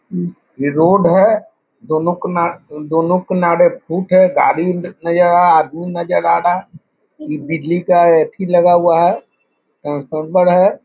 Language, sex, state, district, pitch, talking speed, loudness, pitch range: Hindi, male, Bihar, Muzaffarpur, 175 Hz, 165 wpm, -14 LUFS, 160-180 Hz